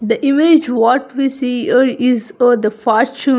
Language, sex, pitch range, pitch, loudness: English, female, 230-265 Hz, 250 Hz, -14 LUFS